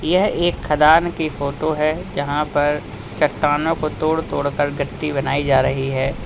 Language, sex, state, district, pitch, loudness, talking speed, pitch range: Hindi, male, Uttar Pradesh, Lalitpur, 150 Hz, -19 LUFS, 165 wpm, 140-160 Hz